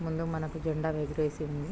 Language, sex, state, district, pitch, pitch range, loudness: Telugu, female, Andhra Pradesh, Krishna, 155 Hz, 155-160 Hz, -33 LUFS